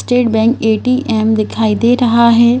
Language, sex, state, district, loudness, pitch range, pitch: Hindi, female, Madhya Pradesh, Bhopal, -12 LUFS, 220-245 Hz, 235 Hz